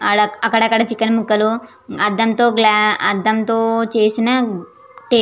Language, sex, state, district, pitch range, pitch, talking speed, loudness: Telugu, female, Andhra Pradesh, Visakhapatnam, 215-230 Hz, 225 Hz, 125 wpm, -16 LUFS